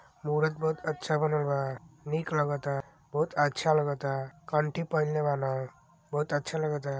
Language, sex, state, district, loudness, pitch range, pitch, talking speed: Bhojpuri, male, Uttar Pradesh, Deoria, -30 LUFS, 140-155 Hz, 150 Hz, 135 wpm